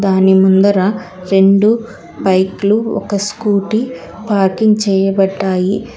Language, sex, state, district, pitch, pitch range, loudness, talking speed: Telugu, female, Telangana, Hyderabad, 195 Hz, 190-210 Hz, -13 LUFS, 90 wpm